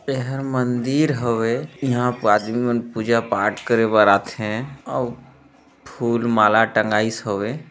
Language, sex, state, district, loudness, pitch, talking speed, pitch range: Hindi, male, Chhattisgarh, Balrampur, -20 LUFS, 120 Hz, 130 wpm, 110-130 Hz